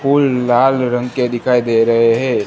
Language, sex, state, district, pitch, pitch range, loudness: Hindi, male, Gujarat, Gandhinagar, 125 Hz, 115-130 Hz, -14 LUFS